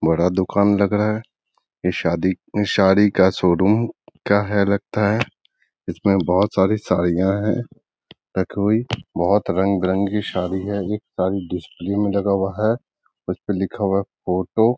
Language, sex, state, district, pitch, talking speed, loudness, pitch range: Hindi, male, Bihar, Gaya, 100 Hz, 165 wpm, -20 LUFS, 95-105 Hz